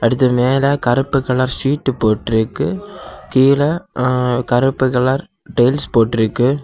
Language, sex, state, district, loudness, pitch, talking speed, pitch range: Tamil, male, Tamil Nadu, Kanyakumari, -16 LUFS, 130 Hz, 125 wpm, 120-140 Hz